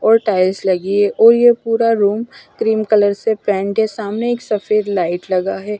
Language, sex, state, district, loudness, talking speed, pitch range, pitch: Hindi, female, Punjab, Fazilka, -15 LUFS, 195 wpm, 200-225 Hz, 210 Hz